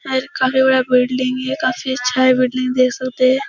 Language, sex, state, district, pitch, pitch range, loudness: Hindi, female, Uttar Pradesh, Etah, 255 Hz, 255-260 Hz, -16 LUFS